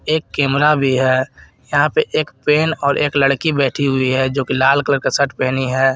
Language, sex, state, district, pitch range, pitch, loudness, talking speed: Hindi, male, Jharkhand, Garhwa, 130-150 Hz, 140 Hz, -16 LUFS, 220 wpm